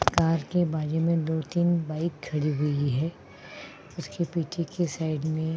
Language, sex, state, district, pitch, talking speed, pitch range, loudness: Hindi, female, Uttarakhand, Tehri Garhwal, 160 Hz, 170 wpm, 155-170 Hz, -27 LUFS